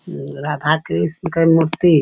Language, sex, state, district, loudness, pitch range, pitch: Angika, female, Bihar, Bhagalpur, -17 LUFS, 150-165 Hz, 165 Hz